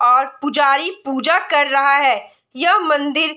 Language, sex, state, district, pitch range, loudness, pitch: Hindi, female, Bihar, Saharsa, 275-320 Hz, -16 LUFS, 290 Hz